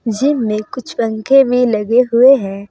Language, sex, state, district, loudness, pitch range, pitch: Hindi, female, Uttar Pradesh, Saharanpur, -13 LUFS, 215-255 Hz, 235 Hz